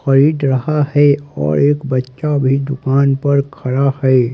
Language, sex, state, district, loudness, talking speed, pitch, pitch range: Hindi, male, Haryana, Rohtak, -15 LUFS, 150 wpm, 140 Hz, 130-145 Hz